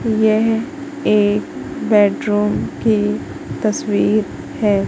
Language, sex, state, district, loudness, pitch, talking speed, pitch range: Hindi, female, Madhya Pradesh, Katni, -17 LUFS, 215 Hz, 75 wpm, 205-225 Hz